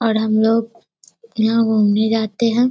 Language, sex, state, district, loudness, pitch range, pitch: Hindi, female, Bihar, Darbhanga, -17 LUFS, 220-230 Hz, 225 Hz